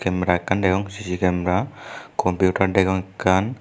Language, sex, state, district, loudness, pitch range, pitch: Chakma, male, Tripura, Unakoti, -21 LUFS, 90-95 Hz, 95 Hz